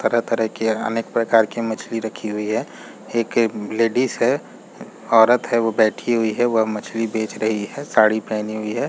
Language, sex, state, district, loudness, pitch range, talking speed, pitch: Hindi, male, Jharkhand, Jamtara, -20 LUFS, 110-115 Hz, 190 wpm, 110 Hz